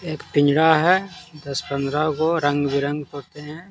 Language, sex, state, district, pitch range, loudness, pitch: Hindi, male, Bihar, Patna, 145-160 Hz, -20 LUFS, 150 Hz